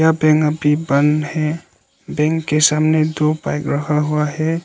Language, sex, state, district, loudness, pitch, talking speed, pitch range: Hindi, male, Arunachal Pradesh, Lower Dibang Valley, -17 LUFS, 150 Hz, 170 wpm, 150-155 Hz